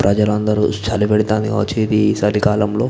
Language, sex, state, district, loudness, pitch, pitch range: Telugu, male, Andhra Pradesh, Visakhapatnam, -16 LUFS, 105 Hz, 105-110 Hz